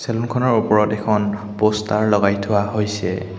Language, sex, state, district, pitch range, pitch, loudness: Assamese, male, Assam, Hailakandi, 105-110 Hz, 105 Hz, -19 LUFS